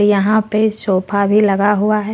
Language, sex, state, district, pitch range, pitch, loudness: Hindi, female, Jharkhand, Ranchi, 200-215 Hz, 210 Hz, -15 LUFS